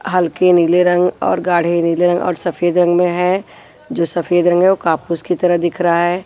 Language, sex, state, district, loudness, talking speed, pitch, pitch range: Hindi, female, Maharashtra, Washim, -14 LUFS, 220 wpm, 175 Hz, 170-180 Hz